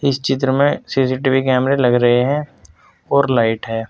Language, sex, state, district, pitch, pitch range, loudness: Hindi, male, Uttar Pradesh, Saharanpur, 130 Hz, 120-135 Hz, -16 LUFS